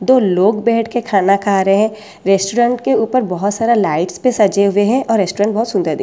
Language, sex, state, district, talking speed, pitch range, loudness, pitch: Hindi, female, Delhi, New Delhi, 230 wpm, 195-230 Hz, -15 LUFS, 210 Hz